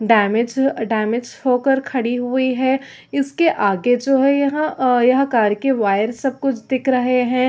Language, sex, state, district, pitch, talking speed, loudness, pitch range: Hindi, female, Chhattisgarh, Raigarh, 255 Hz, 170 wpm, -18 LUFS, 235-270 Hz